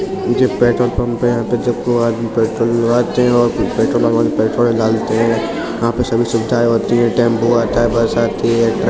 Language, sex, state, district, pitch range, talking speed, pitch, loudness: Hindi, female, Uttar Pradesh, Etah, 115-120 Hz, 200 wpm, 115 Hz, -15 LUFS